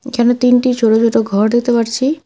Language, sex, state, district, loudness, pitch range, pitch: Bengali, female, West Bengal, Alipurduar, -13 LUFS, 230-250 Hz, 240 Hz